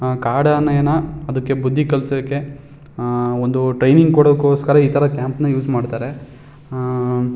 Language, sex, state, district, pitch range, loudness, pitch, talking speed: Kannada, male, Karnataka, Shimoga, 130-145 Hz, -17 LUFS, 140 Hz, 115 wpm